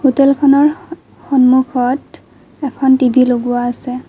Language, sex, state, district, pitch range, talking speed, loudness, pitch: Assamese, female, Assam, Kamrup Metropolitan, 250-275 Hz, 105 wpm, -13 LUFS, 260 Hz